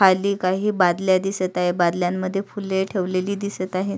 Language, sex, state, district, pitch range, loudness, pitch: Marathi, female, Maharashtra, Sindhudurg, 185-195 Hz, -22 LUFS, 190 Hz